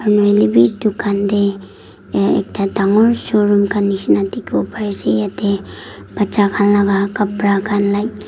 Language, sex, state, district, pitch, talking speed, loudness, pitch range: Nagamese, female, Nagaland, Dimapur, 205 Hz, 160 wpm, -15 LUFS, 195-205 Hz